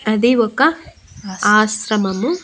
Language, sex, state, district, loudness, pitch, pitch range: Telugu, female, Andhra Pradesh, Annamaya, -16 LUFS, 215 Hz, 210-245 Hz